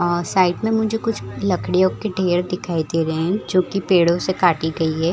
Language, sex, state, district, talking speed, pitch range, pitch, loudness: Hindi, female, Bihar, Madhepura, 235 wpm, 170-190 Hz, 180 Hz, -19 LUFS